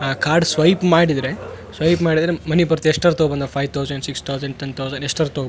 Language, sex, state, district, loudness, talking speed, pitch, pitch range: Kannada, male, Karnataka, Raichur, -18 LUFS, 210 wpm, 155 Hz, 140-165 Hz